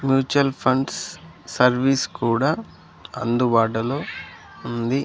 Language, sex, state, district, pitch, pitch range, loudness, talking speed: Telugu, male, Andhra Pradesh, Sri Satya Sai, 130 Hz, 120-135 Hz, -21 LUFS, 70 wpm